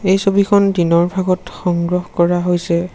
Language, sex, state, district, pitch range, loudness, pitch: Assamese, male, Assam, Sonitpur, 175-190 Hz, -16 LUFS, 180 Hz